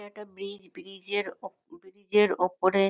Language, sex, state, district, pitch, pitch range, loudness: Bengali, female, West Bengal, North 24 Parganas, 205 Hz, 195-210 Hz, -28 LUFS